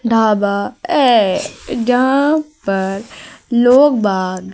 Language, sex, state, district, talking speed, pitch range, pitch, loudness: Hindi, female, Madhya Pradesh, Umaria, 80 wpm, 195-255 Hz, 230 Hz, -14 LUFS